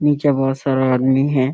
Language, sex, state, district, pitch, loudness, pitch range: Hindi, male, Bihar, Kishanganj, 135 Hz, -17 LUFS, 130-145 Hz